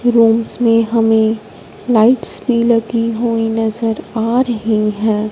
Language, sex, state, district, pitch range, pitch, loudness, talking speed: Hindi, female, Punjab, Fazilka, 220-235 Hz, 225 Hz, -14 LUFS, 125 wpm